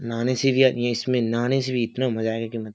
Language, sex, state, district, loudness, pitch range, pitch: Hindi, male, Bihar, Kishanganj, -23 LUFS, 115-130 Hz, 120 Hz